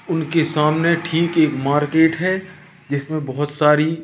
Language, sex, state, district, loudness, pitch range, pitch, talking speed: Hindi, male, Madhya Pradesh, Katni, -18 LUFS, 150-170 Hz, 160 Hz, 135 wpm